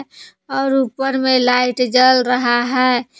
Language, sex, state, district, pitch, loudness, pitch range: Hindi, female, Jharkhand, Palamu, 255 Hz, -15 LUFS, 250-265 Hz